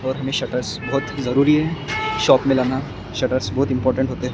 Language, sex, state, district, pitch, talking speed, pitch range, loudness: Hindi, male, Maharashtra, Gondia, 130 Hz, 180 wpm, 125-140 Hz, -20 LUFS